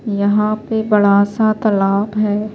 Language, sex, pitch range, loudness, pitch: Urdu, female, 205-215 Hz, -15 LUFS, 210 Hz